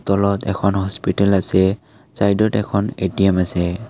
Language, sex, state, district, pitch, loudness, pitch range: Assamese, male, Assam, Kamrup Metropolitan, 100 Hz, -18 LUFS, 95-105 Hz